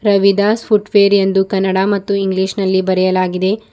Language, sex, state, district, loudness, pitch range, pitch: Kannada, female, Karnataka, Bidar, -14 LUFS, 190-205 Hz, 195 Hz